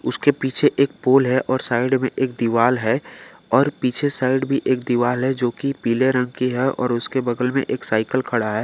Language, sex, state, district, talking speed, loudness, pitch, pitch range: Hindi, male, Jharkhand, Garhwa, 220 wpm, -20 LUFS, 130 Hz, 120-130 Hz